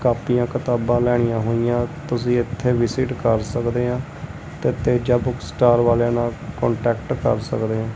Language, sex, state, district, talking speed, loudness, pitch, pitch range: Punjabi, male, Punjab, Kapurthala, 150 wpm, -20 LUFS, 120 Hz, 120-125 Hz